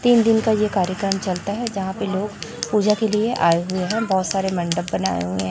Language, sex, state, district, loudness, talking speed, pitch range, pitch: Hindi, female, Chhattisgarh, Raipur, -21 LUFS, 240 wpm, 185-215 Hz, 195 Hz